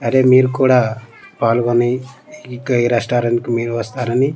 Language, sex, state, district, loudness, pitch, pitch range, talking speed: Telugu, male, Andhra Pradesh, Manyam, -16 LUFS, 120 Hz, 115-130 Hz, 140 wpm